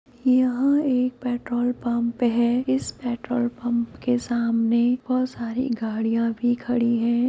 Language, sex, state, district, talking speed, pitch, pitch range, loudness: Hindi, female, Uttar Pradesh, Muzaffarnagar, 130 wpm, 240 Hz, 235-250 Hz, -23 LUFS